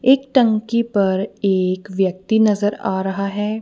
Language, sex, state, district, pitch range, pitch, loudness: Hindi, female, Punjab, Kapurthala, 190-220 Hz, 205 Hz, -18 LUFS